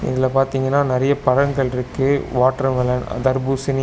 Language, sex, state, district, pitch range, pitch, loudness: Tamil, male, Tamil Nadu, Chennai, 130-135 Hz, 135 Hz, -19 LUFS